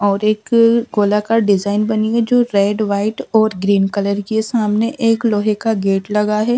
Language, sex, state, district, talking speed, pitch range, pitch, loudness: Hindi, female, Bihar, Kaimur, 190 wpm, 205-225 Hz, 215 Hz, -16 LUFS